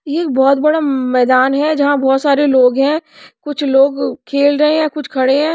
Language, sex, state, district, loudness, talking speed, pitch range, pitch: Hindi, female, Odisha, Nuapada, -13 LUFS, 205 wpm, 270-300 Hz, 285 Hz